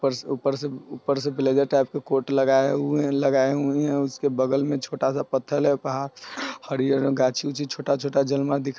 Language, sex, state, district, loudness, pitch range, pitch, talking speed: Hindi, male, Bihar, Sitamarhi, -24 LUFS, 135-140 Hz, 140 Hz, 185 wpm